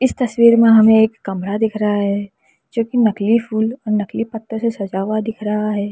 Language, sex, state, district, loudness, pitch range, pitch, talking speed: Hindi, female, Uttar Pradesh, Lalitpur, -17 LUFS, 205-230 Hz, 220 Hz, 215 wpm